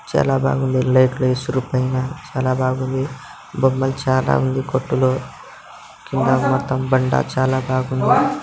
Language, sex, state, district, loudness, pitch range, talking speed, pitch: Telugu, male, Telangana, Nalgonda, -19 LUFS, 130-135 Hz, 100 wpm, 130 Hz